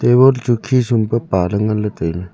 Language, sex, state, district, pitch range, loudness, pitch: Wancho, male, Arunachal Pradesh, Longding, 100-120 Hz, -16 LUFS, 110 Hz